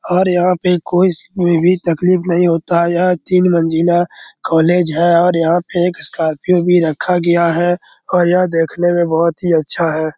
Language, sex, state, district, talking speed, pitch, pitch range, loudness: Hindi, male, Bihar, Araria, 175 wpm, 175 Hz, 165-180 Hz, -14 LUFS